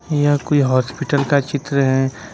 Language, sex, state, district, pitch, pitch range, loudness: Hindi, male, Jharkhand, Ranchi, 140 Hz, 135-145 Hz, -18 LUFS